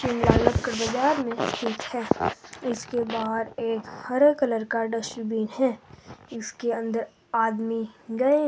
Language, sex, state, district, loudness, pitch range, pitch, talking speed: Hindi, male, Himachal Pradesh, Shimla, -26 LUFS, 225-250 Hz, 230 Hz, 135 wpm